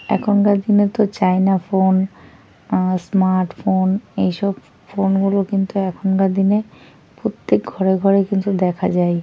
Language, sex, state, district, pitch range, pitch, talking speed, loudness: Bengali, female, West Bengal, North 24 Parganas, 185-200 Hz, 195 Hz, 125 wpm, -18 LUFS